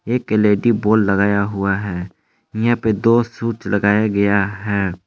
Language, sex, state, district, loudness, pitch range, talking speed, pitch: Hindi, male, Jharkhand, Palamu, -17 LUFS, 100-115 Hz, 155 wpm, 105 Hz